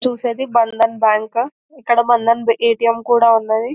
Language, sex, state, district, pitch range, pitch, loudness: Telugu, female, Telangana, Nalgonda, 230-240 Hz, 235 Hz, -15 LUFS